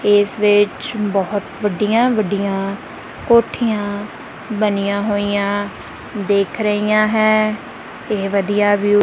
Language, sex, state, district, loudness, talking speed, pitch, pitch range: Punjabi, female, Punjab, Kapurthala, -17 LUFS, 100 wpm, 205 Hz, 200-215 Hz